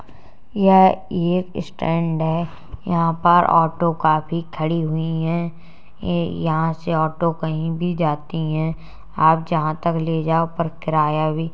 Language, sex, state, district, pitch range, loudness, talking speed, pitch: Hindi, female, Uttar Pradesh, Jalaun, 160-170 Hz, -20 LUFS, 150 wpm, 165 Hz